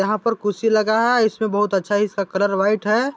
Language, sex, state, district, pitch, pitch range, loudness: Chhattisgarhi, male, Chhattisgarh, Balrampur, 210 Hz, 200-225 Hz, -19 LUFS